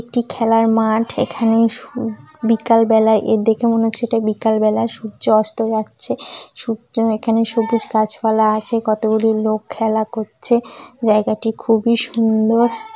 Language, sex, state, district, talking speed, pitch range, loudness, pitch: Bengali, female, West Bengal, Kolkata, 125 wpm, 220-230 Hz, -17 LUFS, 225 Hz